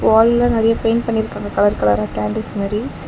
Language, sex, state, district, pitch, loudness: Tamil, female, Tamil Nadu, Chennai, 220 Hz, -17 LUFS